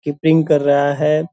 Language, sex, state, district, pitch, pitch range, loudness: Hindi, male, Bihar, Purnia, 150 Hz, 145-160 Hz, -15 LUFS